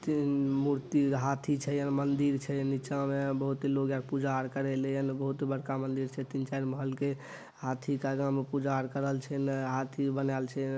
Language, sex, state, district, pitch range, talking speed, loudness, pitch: Maithili, male, Bihar, Madhepura, 135-140 Hz, 175 wpm, -32 LUFS, 135 Hz